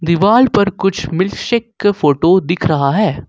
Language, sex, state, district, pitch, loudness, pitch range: Hindi, male, Jharkhand, Ranchi, 190 Hz, -14 LUFS, 165-205 Hz